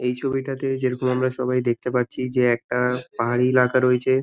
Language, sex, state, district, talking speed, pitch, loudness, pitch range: Bengali, male, West Bengal, Malda, 140 wpm, 125 Hz, -22 LUFS, 125-130 Hz